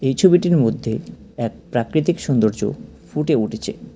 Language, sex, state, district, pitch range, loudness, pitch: Bengali, male, West Bengal, Cooch Behar, 120-175 Hz, -20 LUFS, 135 Hz